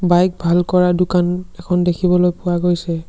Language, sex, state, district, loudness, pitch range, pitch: Assamese, male, Assam, Sonitpur, -17 LUFS, 175-180 Hz, 180 Hz